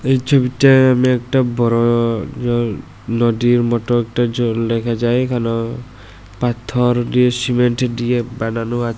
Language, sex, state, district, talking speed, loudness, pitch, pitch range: Bengali, male, Tripura, West Tripura, 120 wpm, -16 LUFS, 120 Hz, 115-125 Hz